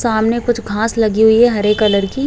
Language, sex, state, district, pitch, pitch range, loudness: Hindi, female, Uttar Pradesh, Hamirpur, 220 Hz, 210-230 Hz, -14 LUFS